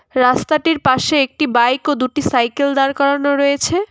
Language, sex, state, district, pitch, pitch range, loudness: Bengali, female, West Bengal, Cooch Behar, 280 Hz, 255-295 Hz, -15 LUFS